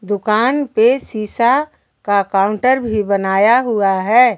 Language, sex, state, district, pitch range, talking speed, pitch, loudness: Hindi, female, Jharkhand, Garhwa, 200-250 Hz, 125 wpm, 220 Hz, -15 LUFS